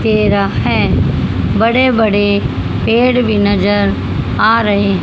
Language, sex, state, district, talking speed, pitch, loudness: Hindi, female, Haryana, Jhajjar, 105 wpm, 205 Hz, -13 LUFS